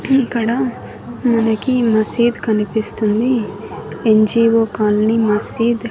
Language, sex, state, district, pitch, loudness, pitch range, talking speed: Telugu, female, Andhra Pradesh, Annamaya, 225 Hz, -15 LUFS, 215-240 Hz, 80 wpm